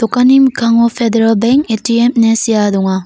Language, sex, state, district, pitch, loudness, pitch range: Garo, female, Meghalaya, North Garo Hills, 230 Hz, -11 LUFS, 225-240 Hz